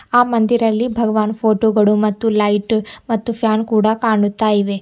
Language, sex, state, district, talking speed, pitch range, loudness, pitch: Kannada, female, Karnataka, Bidar, 135 wpm, 215-225 Hz, -16 LUFS, 220 Hz